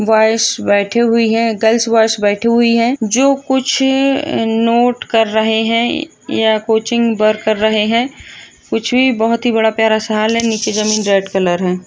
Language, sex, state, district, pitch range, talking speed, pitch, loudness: Hindi, female, Bihar, Purnia, 220-235 Hz, 175 wpm, 225 Hz, -14 LUFS